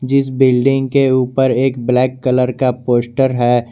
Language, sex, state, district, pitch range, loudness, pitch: Hindi, male, Jharkhand, Garhwa, 125-135 Hz, -14 LUFS, 130 Hz